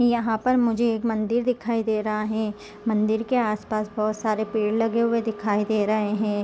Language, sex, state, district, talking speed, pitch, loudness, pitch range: Hindi, female, Chhattisgarh, Korba, 195 wpm, 220 Hz, -24 LUFS, 215-230 Hz